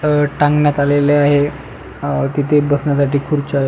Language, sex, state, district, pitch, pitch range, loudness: Marathi, male, Maharashtra, Pune, 145 Hz, 140-145 Hz, -15 LUFS